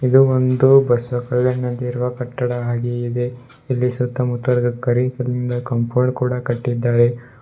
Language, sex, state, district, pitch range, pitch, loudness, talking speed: Kannada, male, Karnataka, Bidar, 120-125 Hz, 125 Hz, -19 LUFS, 130 wpm